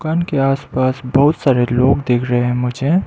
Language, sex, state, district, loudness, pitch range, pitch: Hindi, male, Arunachal Pradesh, Lower Dibang Valley, -16 LUFS, 125-145 Hz, 135 Hz